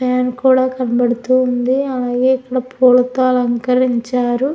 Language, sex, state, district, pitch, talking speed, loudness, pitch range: Telugu, female, Andhra Pradesh, Anantapur, 255 Hz, 65 wpm, -15 LUFS, 245-255 Hz